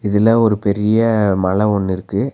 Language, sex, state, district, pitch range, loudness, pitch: Tamil, male, Tamil Nadu, Nilgiris, 100-110 Hz, -15 LUFS, 105 Hz